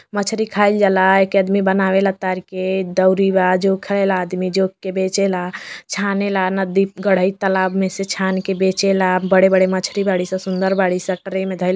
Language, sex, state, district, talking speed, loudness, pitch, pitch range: Bhojpuri, female, Uttar Pradesh, Deoria, 200 wpm, -17 LUFS, 190 Hz, 185-195 Hz